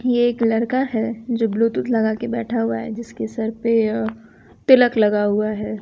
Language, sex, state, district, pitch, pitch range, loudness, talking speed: Hindi, female, Bihar, West Champaran, 225 Hz, 220-235 Hz, -20 LUFS, 195 wpm